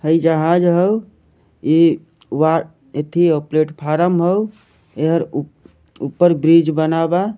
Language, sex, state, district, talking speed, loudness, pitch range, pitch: Bhojpuri, male, Jharkhand, Sahebganj, 115 wpm, -16 LUFS, 155-175 Hz, 165 Hz